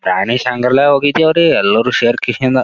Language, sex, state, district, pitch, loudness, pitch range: Kannada, male, Karnataka, Gulbarga, 130 Hz, -12 LUFS, 120-145 Hz